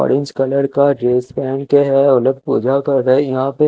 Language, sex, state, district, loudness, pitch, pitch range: Hindi, male, Chandigarh, Chandigarh, -15 LUFS, 135 Hz, 130-140 Hz